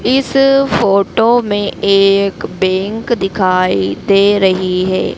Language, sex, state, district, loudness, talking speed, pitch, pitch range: Hindi, female, Madhya Pradesh, Dhar, -13 LUFS, 105 wpm, 195 Hz, 185-225 Hz